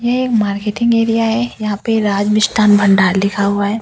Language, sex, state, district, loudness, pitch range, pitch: Hindi, female, Delhi, New Delhi, -14 LUFS, 200-225 Hz, 210 Hz